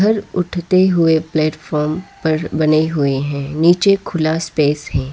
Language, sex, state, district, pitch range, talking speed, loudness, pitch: Hindi, female, Arunachal Pradesh, Lower Dibang Valley, 150-175 Hz, 140 wpm, -16 LUFS, 160 Hz